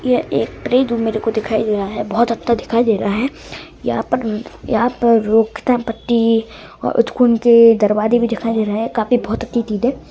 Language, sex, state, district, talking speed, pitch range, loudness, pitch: Hindi, male, Bihar, East Champaran, 220 wpm, 220-240 Hz, -16 LUFS, 230 Hz